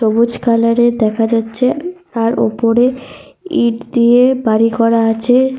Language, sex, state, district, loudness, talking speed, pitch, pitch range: Bengali, female, Jharkhand, Sahebganj, -13 LUFS, 130 wpm, 235 Hz, 230-250 Hz